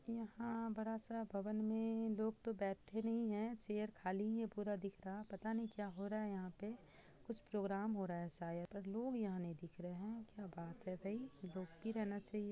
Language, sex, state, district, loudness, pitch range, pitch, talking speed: Hindi, female, Bihar, Purnia, -45 LUFS, 195-225 Hz, 210 Hz, 215 wpm